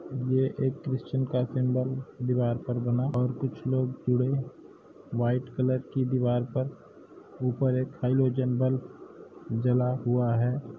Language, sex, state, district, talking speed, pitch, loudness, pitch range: Hindi, male, Uttar Pradesh, Hamirpur, 115 wpm, 130 Hz, -28 LUFS, 125-130 Hz